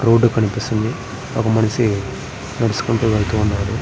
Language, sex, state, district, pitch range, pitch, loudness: Telugu, male, Andhra Pradesh, Srikakulam, 105-115 Hz, 110 Hz, -19 LUFS